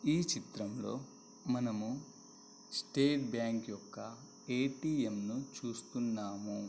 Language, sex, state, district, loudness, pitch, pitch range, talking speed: Telugu, male, Andhra Pradesh, Guntur, -38 LUFS, 125 Hz, 110-155 Hz, 80 wpm